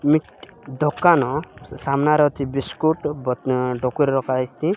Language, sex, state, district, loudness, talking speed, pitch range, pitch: Odia, male, Odisha, Malkangiri, -21 LUFS, 100 wpm, 130-150 Hz, 140 Hz